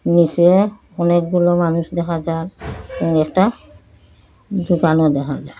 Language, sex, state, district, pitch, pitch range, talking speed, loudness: Bengali, female, Assam, Hailakandi, 170 Hz, 155-175 Hz, 105 wpm, -17 LUFS